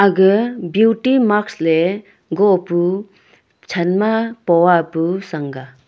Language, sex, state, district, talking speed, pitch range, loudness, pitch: Wancho, female, Arunachal Pradesh, Longding, 110 wpm, 170-210 Hz, -16 LUFS, 190 Hz